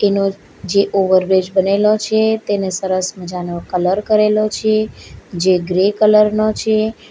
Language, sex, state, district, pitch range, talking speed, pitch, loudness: Gujarati, female, Gujarat, Valsad, 185-215 Hz, 145 wpm, 200 Hz, -16 LUFS